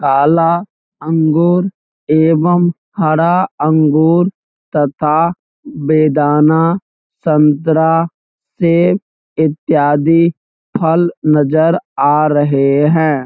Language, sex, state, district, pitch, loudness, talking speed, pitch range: Hindi, male, Bihar, Muzaffarpur, 160 Hz, -13 LUFS, 70 wpm, 150-170 Hz